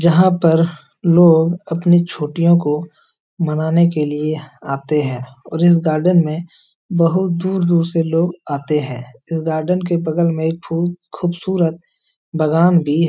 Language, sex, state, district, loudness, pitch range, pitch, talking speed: Hindi, male, Bihar, Jahanabad, -17 LUFS, 155-175 Hz, 165 Hz, 145 wpm